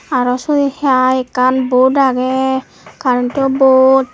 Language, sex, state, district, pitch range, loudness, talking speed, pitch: Chakma, female, Tripura, West Tripura, 255-270 Hz, -13 LUFS, 115 wpm, 260 Hz